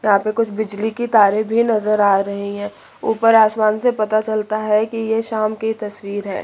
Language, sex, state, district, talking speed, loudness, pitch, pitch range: Hindi, female, Chandigarh, Chandigarh, 215 wpm, -18 LUFS, 215 Hz, 205-220 Hz